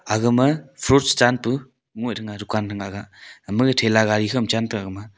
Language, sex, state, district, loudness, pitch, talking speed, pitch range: Wancho, male, Arunachal Pradesh, Longding, -21 LUFS, 110 Hz, 195 wpm, 105-125 Hz